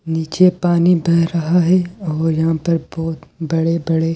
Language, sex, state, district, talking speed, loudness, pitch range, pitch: Hindi, male, Delhi, New Delhi, 160 wpm, -17 LUFS, 160-175 Hz, 165 Hz